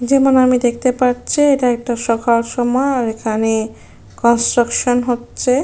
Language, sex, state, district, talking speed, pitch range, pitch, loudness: Bengali, female, West Bengal, Jalpaiguri, 130 wpm, 235-255 Hz, 245 Hz, -15 LUFS